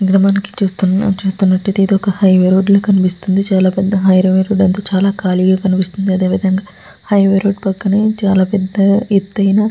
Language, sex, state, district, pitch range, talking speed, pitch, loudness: Telugu, female, Andhra Pradesh, Guntur, 190-200 Hz, 135 wpm, 195 Hz, -13 LUFS